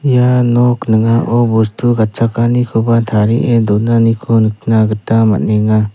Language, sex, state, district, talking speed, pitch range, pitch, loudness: Garo, male, Meghalaya, South Garo Hills, 100 wpm, 110-120 Hz, 115 Hz, -12 LUFS